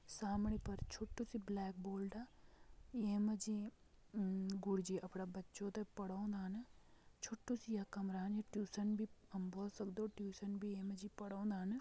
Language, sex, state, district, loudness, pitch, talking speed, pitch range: Garhwali, female, Uttarakhand, Tehri Garhwal, -45 LUFS, 205 Hz, 160 wpm, 195-215 Hz